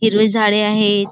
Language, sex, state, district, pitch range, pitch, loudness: Marathi, female, Maharashtra, Dhule, 210-215 Hz, 210 Hz, -14 LUFS